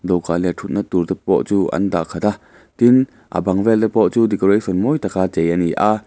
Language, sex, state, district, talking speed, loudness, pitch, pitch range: Mizo, male, Mizoram, Aizawl, 235 wpm, -17 LUFS, 95 Hz, 90-105 Hz